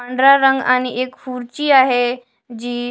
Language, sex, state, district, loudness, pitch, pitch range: Marathi, female, Maharashtra, Washim, -15 LUFS, 250 Hz, 245-265 Hz